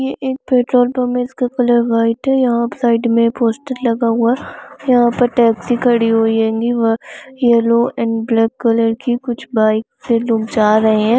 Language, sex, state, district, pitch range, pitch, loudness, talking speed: Hindi, female, Chhattisgarh, Raigarh, 230-245 Hz, 235 Hz, -15 LUFS, 180 wpm